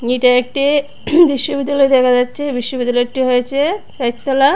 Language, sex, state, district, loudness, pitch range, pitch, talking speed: Bengali, female, Tripura, West Tripura, -15 LUFS, 250-285 Hz, 265 Hz, 120 wpm